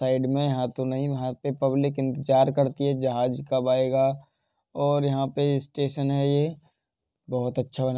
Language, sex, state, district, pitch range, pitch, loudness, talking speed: Hindi, male, Uttar Pradesh, Jalaun, 130-140 Hz, 135 Hz, -25 LUFS, 190 wpm